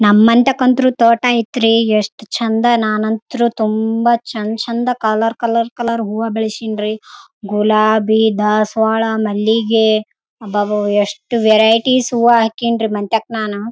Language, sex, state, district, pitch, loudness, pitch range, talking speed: Kannada, female, Karnataka, Raichur, 225 Hz, -15 LUFS, 215-235 Hz, 85 wpm